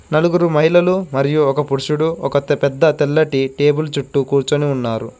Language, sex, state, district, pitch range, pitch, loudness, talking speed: Telugu, male, Telangana, Mahabubabad, 140-155 Hz, 145 Hz, -16 LUFS, 140 wpm